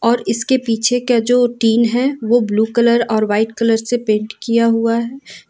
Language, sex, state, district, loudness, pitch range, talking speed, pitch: Hindi, female, Jharkhand, Ranchi, -15 LUFS, 225-245 Hz, 195 wpm, 230 Hz